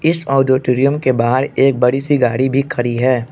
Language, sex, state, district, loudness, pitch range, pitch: Hindi, male, Arunachal Pradesh, Lower Dibang Valley, -15 LUFS, 125-135 Hz, 130 Hz